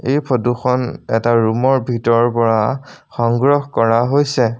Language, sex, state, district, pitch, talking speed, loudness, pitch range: Assamese, male, Assam, Sonitpur, 120 Hz, 115 wpm, -16 LUFS, 115-135 Hz